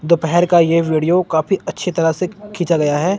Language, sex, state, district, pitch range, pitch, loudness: Hindi, male, Chandigarh, Chandigarh, 160-185 Hz, 170 Hz, -16 LUFS